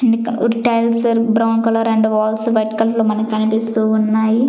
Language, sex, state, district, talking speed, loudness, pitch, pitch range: Telugu, female, Andhra Pradesh, Sri Satya Sai, 185 wpm, -16 LUFS, 225 Hz, 220-230 Hz